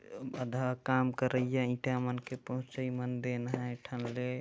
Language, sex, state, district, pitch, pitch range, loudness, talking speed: Chhattisgarhi, male, Chhattisgarh, Jashpur, 125 Hz, 125-130 Hz, -35 LUFS, 165 wpm